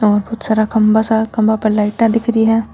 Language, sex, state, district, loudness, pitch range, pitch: Marwari, female, Rajasthan, Nagaur, -14 LUFS, 215-225 Hz, 220 Hz